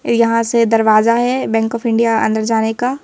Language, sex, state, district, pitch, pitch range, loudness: Hindi, female, Madhya Pradesh, Bhopal, 230 Hz, 225-235 Hz, -14 LUFS